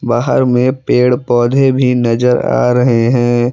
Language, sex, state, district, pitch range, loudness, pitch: Hindi, male, Jharkhand, Palamu, 120-125 Hz, -12 LUFS, 125 Hz